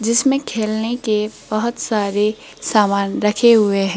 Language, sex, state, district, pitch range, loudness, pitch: Hindi, female, Rajasthan, Jaipur, 210-230 Hz, -17 LUFS, 215 Hz